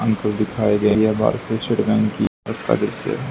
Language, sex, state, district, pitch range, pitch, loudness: Hindi, male, Haryana, Charkhi Dadri, 105-110 Hz, 105 Hz, -20 LUFS